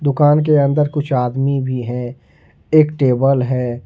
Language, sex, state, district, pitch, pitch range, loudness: Hindi, male, Jharkhand, Ranchi, 135 Hz, 125-145 Hz, -16 LUFS